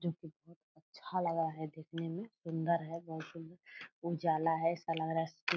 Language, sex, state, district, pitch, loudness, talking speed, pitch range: Hindi, female, Bihar, Purnia, 165 Hz, -37 LUFS, 205 wpm, 160-170 Hz